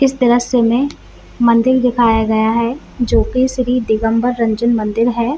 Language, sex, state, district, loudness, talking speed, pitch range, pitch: Hindi, female, Jharkhand, Jamtara, -15 LUFS, 155 wpm, 230-250 Hz, 240 Hz